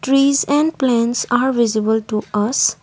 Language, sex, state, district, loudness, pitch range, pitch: English, female, Assam, Kamrup Metropolitan, -17 LUFS, 220-275 Hz, 240 Hz